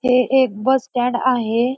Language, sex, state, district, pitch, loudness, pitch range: Marathi, female, Maharashtra, Pune, 250 Hz, -18 LUFS, 240-260 Hz